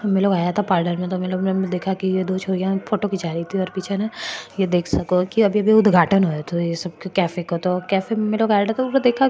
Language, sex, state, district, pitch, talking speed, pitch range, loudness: Marwari, female, Rajasthan, Churu, 190 Hz, 180 wpm, 180-205 Hz, -20 LUFS